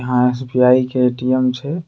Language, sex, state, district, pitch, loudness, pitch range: Angika, male, Bihar, Bhagalpur, 125 Hz, -16 LUFS, 125-130 Hz